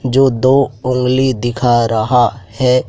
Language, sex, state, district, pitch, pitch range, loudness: Hindi, male, Madhya Pradesh, Dhar, 125 Hz, 120-130 Hz, -14 LUFS